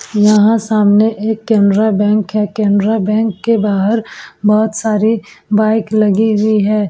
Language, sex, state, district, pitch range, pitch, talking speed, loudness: Hindi, female, Uttar Pradesh, Etah, 210-220 Hz, 215 Hz, 140 wpm, -13 LUFS